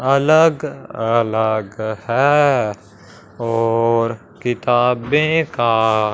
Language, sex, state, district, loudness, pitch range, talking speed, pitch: Hindi, male, Punjab, Fazilka, -17 LUFS, 110-135 Hz, 60 wpm, 115 Hz